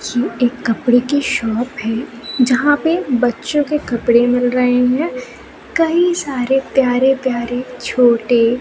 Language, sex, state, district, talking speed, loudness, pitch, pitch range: Hindi, female, Madhya Pradesh, Katni, 130 wpm, -16 LUFS, 250 Hz, 240-270 Hz